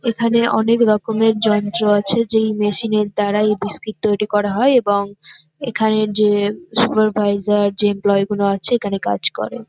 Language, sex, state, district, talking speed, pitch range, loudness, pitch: Bengali, female, West Bengal, North 24 Parganas, 150 wpm, 205-225 Hz, -16 LUFS, 210 Hz